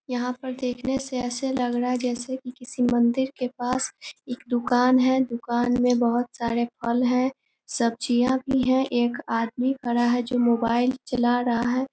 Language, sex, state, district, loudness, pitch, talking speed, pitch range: Hindi, female, Bihar, Sitamarhi, -24 LUFS, 245 Hz, 175 wpm, 240-260 Hz